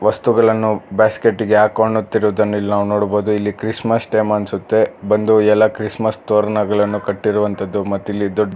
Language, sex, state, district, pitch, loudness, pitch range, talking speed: Kannada, male, Karnataka, Bangalore, 105 Hz, -16 LUFS, 105-110 Hz, 135 wpm